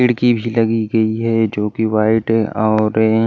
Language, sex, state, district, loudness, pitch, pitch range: Hindi, male, Odisha, Malkangiri, -16 LUFS, 110 Hz, 110-115 Hz